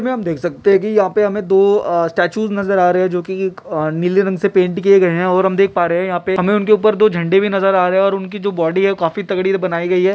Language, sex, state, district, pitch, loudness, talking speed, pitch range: Hindi, male, Jharkhand, Jamtara, 190 Hz, -15 LUFS, 325 wpm, 180-200 Hz